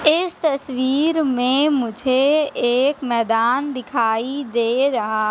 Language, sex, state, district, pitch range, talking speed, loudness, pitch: Hindi, female, Madhya Pradesh, Katni, 235-285 Hz, 100 wpm, -19 LUFS, 260 Hz